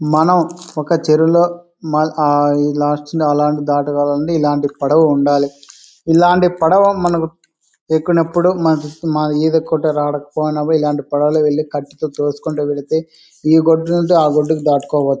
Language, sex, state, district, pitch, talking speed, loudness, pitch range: Telugu, male, Andhra Pradesh, Anantapur, 155 Hz, 95 wpm, -15 LUFS, 145-165 Hz